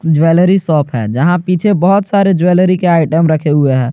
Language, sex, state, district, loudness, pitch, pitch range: Hindi, male, Jharkhand, Garhwa, -11 LUFS, 170 Hz, 155-185 Hz